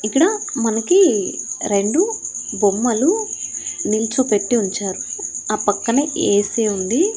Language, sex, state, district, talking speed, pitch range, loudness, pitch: Telugu, female, Andhra Pradesh, Annamaya, 85 wpm, 210-340 Hz, -18 LUFS, 230 Hz